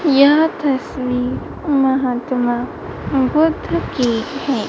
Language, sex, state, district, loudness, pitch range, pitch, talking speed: Hindi, female, Madhya Pradesh, Dhar, -17 LUFS, 250-280 Hz, 265 Hz, 75 wpm